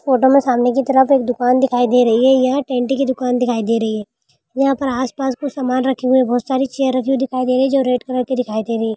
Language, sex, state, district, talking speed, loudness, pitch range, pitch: Hindi, female, Bihar, Jamui, 265 wpm, -16 LUFS, 245-265 Hz, 255 Hz